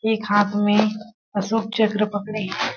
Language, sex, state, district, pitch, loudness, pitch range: Hindi, female, Chhattisgarh, Sarguja, 210 Hz, -21 LUFS, 205-220 Hz